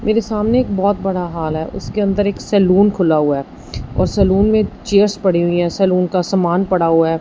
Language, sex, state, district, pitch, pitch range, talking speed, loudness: Hindi, female, Punjab, Fazilka, 190 Hz, 175-205 Hz, 225 wpm, -16 LUFS